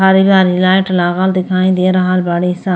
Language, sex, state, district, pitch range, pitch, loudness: Bhojpuri, female, Uttar Pradesh, Gorakhpur, 180-190 Hz, 185 Hz, -12 LUFS